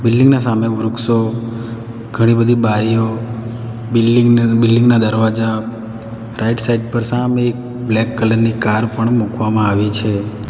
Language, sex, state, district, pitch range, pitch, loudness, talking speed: Gujarati, male, Gujarat, Valsad, 110-115 Hz, 115 Hz, -15 LUFS, 135 wpm